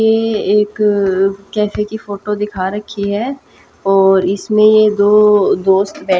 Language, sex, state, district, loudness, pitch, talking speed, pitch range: Hindi, female, Haryana, Jhajjar, -14 LUFS, 210 Hz, 135 wpm, 195-215 Hz